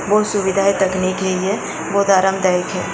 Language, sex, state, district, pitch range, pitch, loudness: Hindi, female, Goa, North and South Goa, 185-200 Hz, 190 Hz, -17 LUFS